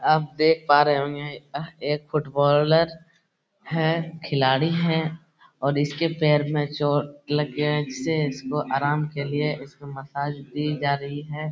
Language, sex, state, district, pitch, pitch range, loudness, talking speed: Hindi, male, Bihar, Saran, 150 Hz, 145-160 Hz, -24 LUFS, 160 wpm